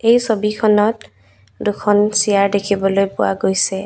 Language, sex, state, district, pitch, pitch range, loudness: Assamese, female, Assam, Kamrup Metropolitan, 200 Hz, 190-210 Hz, -16 LUFS